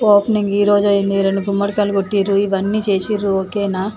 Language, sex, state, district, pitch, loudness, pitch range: Telugu, female, Telangana, Nalgonda, 200 Hz, -17 LUFS, 195-205 Hz